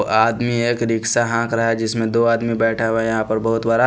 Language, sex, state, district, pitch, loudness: Hindi, male, Punjab, Pathankot, 115 Hz, -18 LUFS